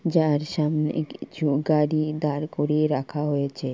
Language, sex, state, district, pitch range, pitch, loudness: Bengali, male, West Bengal, Purulia, 145-155 Hz, 150 Hz, -24 LUFS